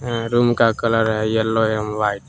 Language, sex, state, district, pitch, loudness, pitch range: Hindi, male, Jharkhand, Palamu, 110 Hz, -19 LUFS, 110-115 Hz